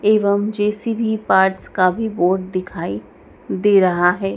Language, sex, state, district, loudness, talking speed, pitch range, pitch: Hindi, female, Madhya Pradesh, Dhar, -18 LUFS, 135 wpm, 185-210 Hz, 195 Hz